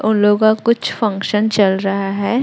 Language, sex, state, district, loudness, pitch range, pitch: Hindi, male, Chhattisgarh, Raipur, -16 LUFS, 195-220 Hz, 205 Hz